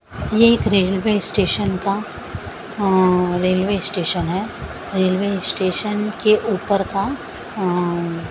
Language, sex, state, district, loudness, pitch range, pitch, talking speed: Hindi, female, Maharashtra, Mumbai Suburban, -19 LUFS, 185-210 Hz, 195 Hz, 115 wpm